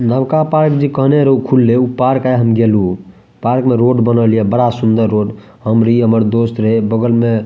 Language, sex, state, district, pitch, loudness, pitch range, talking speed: Maithili, male, Bihar, Madhepura, 115 Hz, -13 LUFS, 110-125 Hz, 200 wpm